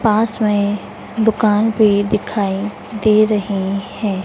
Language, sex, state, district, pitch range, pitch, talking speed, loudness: Hindi, female, Madhya Pradesh, Dhar, 205-215 Hz, 210 Hz, 115 wpm, -17 LUFS